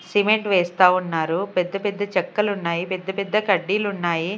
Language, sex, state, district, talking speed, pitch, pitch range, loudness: Telugu, female, Andhra Pradesh, Sri Satya Sai, 150 wpm, 190 Hz, 180-205 Hz, -21 LUFS